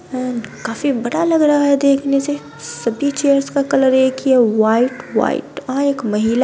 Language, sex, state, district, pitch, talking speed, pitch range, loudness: Hindi, female, Bihar, Gaya, 265 Hz, 185 wpm, 235-280 Hz, -16 LUFS